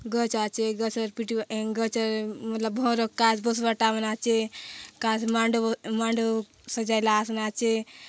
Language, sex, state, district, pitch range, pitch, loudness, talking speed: Halbi, female, Chhattisgarh, Bastar, 220-230 Hz, 225 Hz, -27 LUFS, 150 wpm